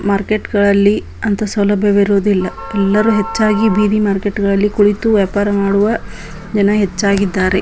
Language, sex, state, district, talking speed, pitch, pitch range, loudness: Kannada, female, Karnataka, Bijapur, 125 wpm, 205 Hz, 200-210 Hz, -14 LUFS